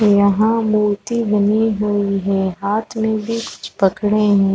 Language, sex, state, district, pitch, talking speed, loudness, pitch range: Hindi, female, Chhattisgarh, Raigarh, 210 Hz, 145 wpm, -17 LUFS, 200-220 Hz